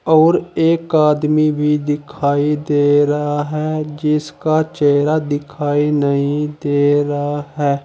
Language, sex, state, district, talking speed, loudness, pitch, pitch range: Hindi, male, Uttar Pradesh, Saharanpur, 115 wpm, -16 LUFS, 150 Hz, 145-155 Hz